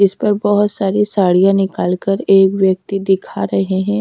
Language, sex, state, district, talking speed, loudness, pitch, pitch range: Hindi, female, Chhattisgarh, Raipur, 165 wpm, -15 LUFS, 195 Hz, 180-200 Hz